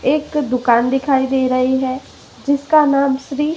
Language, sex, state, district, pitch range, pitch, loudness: Hindi, female, Madhya Pradesh, Umaria, 260-290 Hz, 270 Hz, -16 LUFS